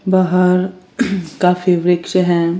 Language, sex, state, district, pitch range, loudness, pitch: Hindi, female, Chandigarh, Chandigarh, 175-185 Hz, -15 LUFS, 180 Hz